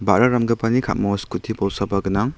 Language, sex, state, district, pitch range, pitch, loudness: Garo, male, Meghalaya, South Garo Hills, 100-125 Hz, 110 Hz, -20 LUFS